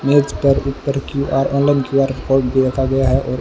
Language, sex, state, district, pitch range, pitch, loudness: Hindi, male, Rajasthan, Bikaner, 135-140 Hz, 135 Hz, -17 LUFS